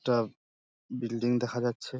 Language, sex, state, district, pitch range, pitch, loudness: Bengali, male, West Bengal, Dakshin Dinajpur, 105-120 Hz, 120 Hz, -31 LUFS